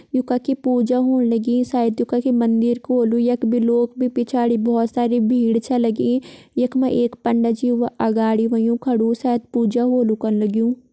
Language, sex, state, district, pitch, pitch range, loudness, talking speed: Garhwali, female, Uttarakhand, Tehri Garhwal, 240 Hz, 230-250 Hz, -19 LUFS, 190 wpm